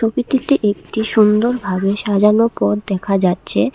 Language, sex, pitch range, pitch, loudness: Bengali, female, 200-235 Hz, 215 Hz, -16 LUFS